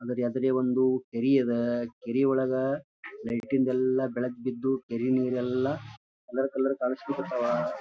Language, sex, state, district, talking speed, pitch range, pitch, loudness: Kannada, male, Karnataka, Gulbarga, 155 wpm, 120-130 Hz, 130 Hz, -28 LUFS